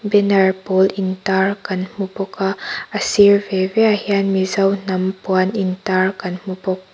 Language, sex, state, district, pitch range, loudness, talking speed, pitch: Mizo, female, Mizoram, Aizawl, 185-200 Hz, -18 LUFS, 175 wpm, 190 Hz